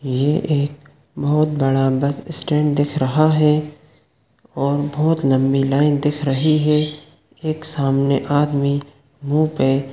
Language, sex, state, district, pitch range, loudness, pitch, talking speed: Hindi, male, Chhattisgarh, Sukma, 140-150 Hz, -18 LUFS, 145 Hz, 135 wpm